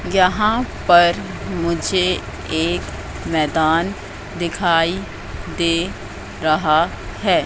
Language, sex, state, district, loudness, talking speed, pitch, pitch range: Hindi, female, Madhya Pradesh, Katni, -19 LUFS, 70 wpm, 165 Hz, 105-175 Hz